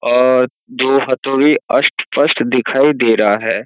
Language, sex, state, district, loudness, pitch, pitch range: Hindi, male, Bihar, Kishanganj, -14 LUFS, 130 Hz, 115-135 Hz